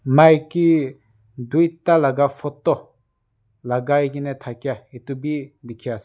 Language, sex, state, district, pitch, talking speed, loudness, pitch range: Nagamese, male, Nagaland, Dimapur, 140 Hz, 120 wpm, -20 LUFS, 120-150 Hz